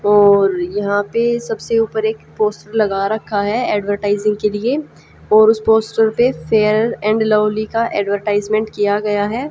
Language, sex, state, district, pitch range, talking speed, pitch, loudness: Hindi, female, Haryana, Jhajjar, 205-220 Hz, 160 wpm, 215 Hz, -16 LUFS